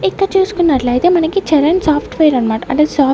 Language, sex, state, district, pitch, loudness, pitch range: Telugu, female, Andhra Pradesh, Sri Satya Sai, 310 Hz, -13 LUFS, 270-355 Hz